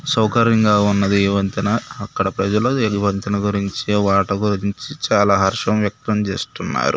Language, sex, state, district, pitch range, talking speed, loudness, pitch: Telugu, male, Andhra Pradesh, Guntur, 100-105 Hz, 130 wpm, -18 LUFS, 100 Hz